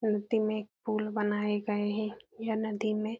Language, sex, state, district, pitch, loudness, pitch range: Hindi, female, Uttar Pradesh, Etah, 215 Hz, -32 LUFS, 210-220 Hz